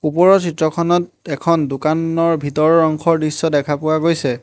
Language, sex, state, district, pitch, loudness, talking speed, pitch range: Assamese, male, Assam, Hailakandi, 160 Hz, -16 LUFS, 135 wpm, 150-165 Hz